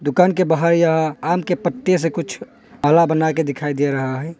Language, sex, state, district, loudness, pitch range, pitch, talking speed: Hindi, male, Arunachal Pradesh, Longding, -18 LUFS, 145-170 Hz, 160 Hz, 205 wpm